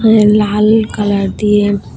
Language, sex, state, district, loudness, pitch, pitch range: Bengali, female, Tripura, West Tripura, -12 LUFS, 210 Hz, 205-215 Hz